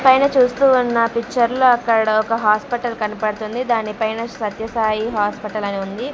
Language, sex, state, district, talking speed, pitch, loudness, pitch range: Telugu, female, Andhra Pradesh, Sri Satya Sai, 155 wpm, 230 Hz, -18 LUFS, 215-245 Hz